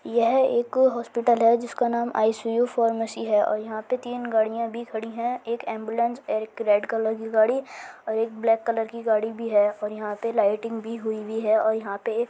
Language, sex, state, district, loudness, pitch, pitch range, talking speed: Hindi, male, Bihar, Bhagalpur, -24 LUFS, 225 Hz, 220-235 Hz, 225 wpm